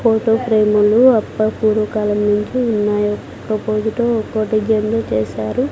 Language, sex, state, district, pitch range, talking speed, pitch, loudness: Telugu, female, Andhra Pradesh, Sri Satya Sai, 210-225 Hz, 115 wpm, 215 Hz, -16 LUFS